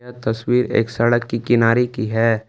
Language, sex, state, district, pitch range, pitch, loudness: Hindi, male, Jharkhand, Palamu, 115-120 Hz, 115 Hz, -18 LUFS